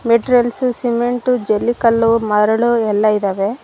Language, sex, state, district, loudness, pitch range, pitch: Kannada, female, Karnataka, Bangalore, -15 LUFS, 215-240 Hz, 230 Hz